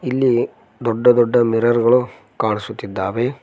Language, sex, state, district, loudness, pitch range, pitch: Kannada, male, Karnataka, Koppal, -18 LUFS, 110-125 Hz, 120 Hz